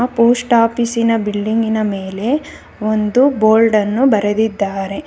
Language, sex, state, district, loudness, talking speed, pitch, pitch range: Kannada, female, Karnataka, Bangalore, -15 LUFS, 85 wpm, 220 Hz, 210-235 Hz